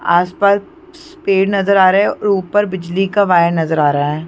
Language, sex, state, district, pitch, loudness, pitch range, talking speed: Hindi, female, Chhattisgarh, Bilaspur, 195 Hz, -14 LUFS, 170-200 Hz, 210 wpm